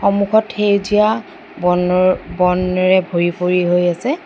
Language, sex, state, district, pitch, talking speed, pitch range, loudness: Assamese, female, Assam, Sonitpur, 185 Hz, 115 wpm, 180-210 Hz, -16 LUFS